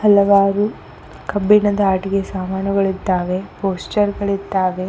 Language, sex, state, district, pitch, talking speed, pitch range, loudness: Kannada, female, Karnataka, Koppal, 195 Hz, 75 wpm, 190-205 Hz, -18 LUFS